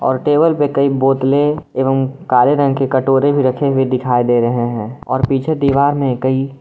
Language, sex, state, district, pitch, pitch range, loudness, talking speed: Hindi, male, Jharkhand, Garhwa, 135 Hz, 130-140 Hz, -15 LUFS, 190 wpm